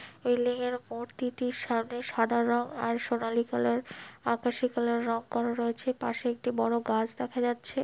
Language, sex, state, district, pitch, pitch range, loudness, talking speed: Bengali, female, West Bengal, Malda, 235 Hz, 230-245 Hz, -30 LUFS, 155 wpm